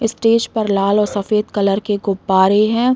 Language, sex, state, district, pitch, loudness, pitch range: Hindi, female, Uttar Pradesh, Deoria, 210 Hz, -16 LUFS, 200-225 Hz